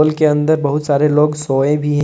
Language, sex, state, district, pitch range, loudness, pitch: Hindi, male, Jharkhand, Deoghar, 145-150 Hz, -15 LUFS, 150 Hz